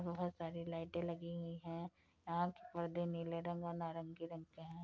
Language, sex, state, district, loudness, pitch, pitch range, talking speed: Hindi, female, Uttar Pradesh, Budaun, -45 LUFS, 170 Hz, 165-170 Hz, 200 wpm